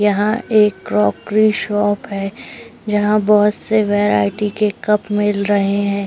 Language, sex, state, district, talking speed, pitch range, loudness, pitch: Hindi, female, Uttar Pradesh, Etah, 140 wpm, 200-215 Hz, -16 LUFS, 205 Hz